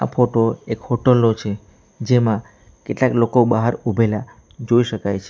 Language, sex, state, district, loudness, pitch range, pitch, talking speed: Gujarati, male, Gujarat, Valsad, -18 LUFS, 105-120 Hz, 115 Hz, 160 wpm